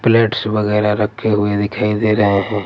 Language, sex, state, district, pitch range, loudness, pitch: Hindi, male, Punjab, Pathankot, 105-110 Hz, -16 LUFS, 105 Hz